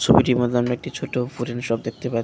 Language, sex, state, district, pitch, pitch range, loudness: Bengali, male, Tripura, West Tripura, 120 Hz, 115-125 Hz, -22 LUFS